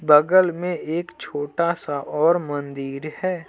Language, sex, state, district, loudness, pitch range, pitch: Hindi, male, Jharkhand, Deoghar, -22 LUFS, 145-175 Hz, 155 Hz